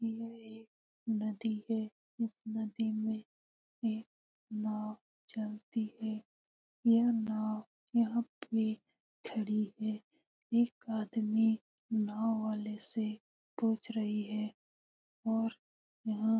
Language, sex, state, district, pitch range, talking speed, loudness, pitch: Hindi, female, Bihar, Lakhisarai, 215-225 Hz, 100 wpm, -36 LUFS, 220 Hz